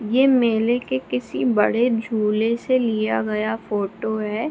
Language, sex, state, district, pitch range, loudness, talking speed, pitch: Hindi, female, Bihar, Begusarai, 205-235 Hz, -21 LUFS, 145 wpm, 220 Hz